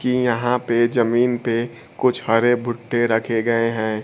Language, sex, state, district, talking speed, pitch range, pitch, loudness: Hindi, male, Bihar, Kaimur, 165 wpm, 115-120 Hz, 120 Hz, -19 LUFS